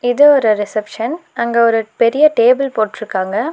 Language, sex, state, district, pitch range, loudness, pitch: Tamil, female, Tamil Nadu, Nilgiris, 215-275 Hz, -14 LUFS, 235 Hz